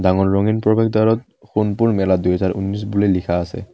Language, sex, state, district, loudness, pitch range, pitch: Assamese, male, Assam, Kamrup Metropolitan, -18 LUFS, 95-110 Hz, 100 Hz